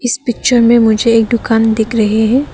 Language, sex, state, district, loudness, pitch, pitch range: Hindi, female, Arunachal Pradesh, Papum Pare, -11 LUFS, 230 Hz, 225-240 Hz